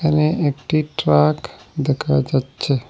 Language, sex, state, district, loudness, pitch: Bengali, male, Assam, Hailakandi, -19 LUFS, 140 Hz